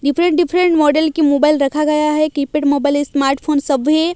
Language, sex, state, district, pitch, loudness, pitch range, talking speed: Hindi, female, Odisha, Malkangiri, 300 Hz, -15 LUFS, 285-310 Hz, 175 wpm